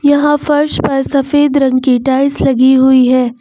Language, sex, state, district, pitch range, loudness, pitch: Hindi, female, Uttar Pradesh, Lucknow, 260-290 Hz, -11 LUFS, 270 Hz